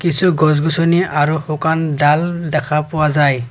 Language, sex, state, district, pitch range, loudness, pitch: Assamese, male, Assam, Kamrup Metropolitan, 150-165 Hz, -15 LUFS, 155 Hz